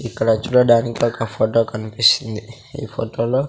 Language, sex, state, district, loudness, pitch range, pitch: Telugu, male, Andhra Pradesh, Sri Satya Sai, -18 LUFS, 110-120 Hz, 115 Hz